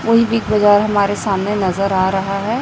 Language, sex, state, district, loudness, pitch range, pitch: Hindi, female, Chhattisgarh, Raipur, -15 LUFS, 195-215 Hz, 205 Hz